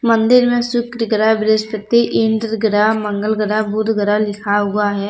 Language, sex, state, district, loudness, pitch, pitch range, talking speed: Hindi, female, Jharkhand, Deoghar, -16 LUFS, 215 Hz, 210-225 Hz, 165 wpm